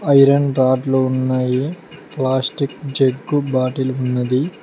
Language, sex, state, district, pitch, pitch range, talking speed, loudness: Telugu, male, Telangana, Mahabubabad, 130 Hz, 130-140 Hz, 105 wpm, -18 LUFS